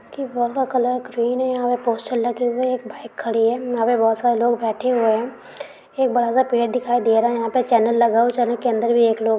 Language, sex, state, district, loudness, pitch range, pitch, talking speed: Hindi, female, Bihar, Kishanganj, -19 LUFS, 230-250 Hz, 240 Hz, 275 wpm